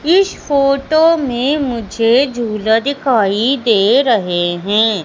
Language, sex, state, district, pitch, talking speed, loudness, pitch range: Hindi, female, Madhya Pradesh, Katni, 240 Hz, 105 wpm, -14 LUFS, 215-280 Hz